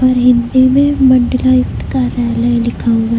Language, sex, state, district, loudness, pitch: Hindi, female, Uttar Pradesh, Lucknow, -12 LUFS, 240 Hz